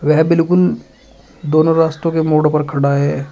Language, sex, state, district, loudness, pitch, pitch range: Hindi, male, Uttar Pradesh, Shamli, -14 LUFS, 155 Hz, 150-165 Hz